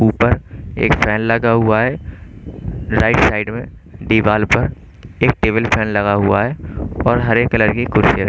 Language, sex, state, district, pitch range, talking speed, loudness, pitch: Hindi, male, Chandigarh, Chandigarh, 100-115 Hz, 165 wpm, -15 LUFS, 110 Hz